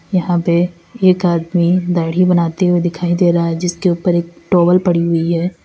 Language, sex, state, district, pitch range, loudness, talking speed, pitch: Hindi, female, Uttar Pradesh, Lalitpur, 170-180 Hz, -15 LUFS, 180 wpm, 175 Hz